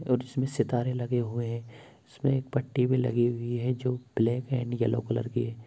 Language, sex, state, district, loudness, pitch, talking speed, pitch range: Bhojpuri, male, Bihar, Saran, -29 LUFS, 120 Hz, 210 wpm, 120-130 Hz